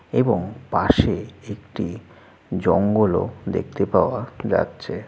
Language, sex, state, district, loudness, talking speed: Bengali, male, West Bengal, Jalpaiguri, -22 LUFS, 105 wpm